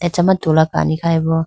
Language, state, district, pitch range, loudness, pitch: Idu Mishmi, Arunachal Pradesh, Lower Dibang Valley, 160-175 Hz, -16 LUFS, 165 Hz